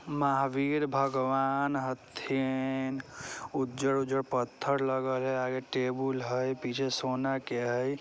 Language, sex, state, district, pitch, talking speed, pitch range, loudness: Maithili, female, Bihar, Vaishali, 130 Hz, 105 wpm, 130-135 Hz, -31 LUFS